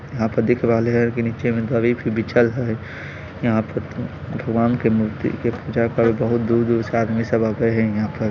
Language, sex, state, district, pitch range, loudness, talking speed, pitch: Maithili, male, Bihar, Samastipur, 115-120 Hz, -20 LUFS, 210 wpm, 115 Hz